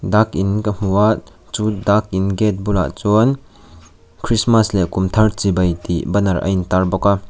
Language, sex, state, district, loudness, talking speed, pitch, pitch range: Mizo, male, Mizoram, Aizawl, -17 LUFS, 180 wpm, 100 Hz, 90-105 Hz